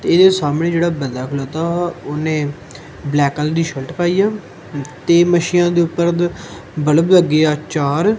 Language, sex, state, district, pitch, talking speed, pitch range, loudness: Punjabi, male, Punjab, Kapurthala, 160 Hz, 170 wpm, 145-175 Hz, -16 LUFS